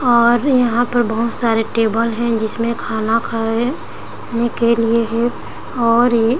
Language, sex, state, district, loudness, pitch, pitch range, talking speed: Hindi, female, Chhattisgarh, Raigarh, -17 LUFS, 235 Hz, 230-240 Hz, 160 wpm